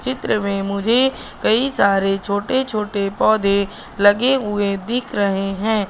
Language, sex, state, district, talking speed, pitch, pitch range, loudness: Hindi, female, Madhya Pradesh, Katni, 130 wpm, 205 Hz, 200-235 Hz, -18 LUFS